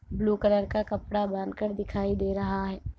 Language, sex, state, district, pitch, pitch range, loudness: Hindi, female, Jharkhand, Jamtara, 205 Hz, 195-210 Hz, -29 LUFS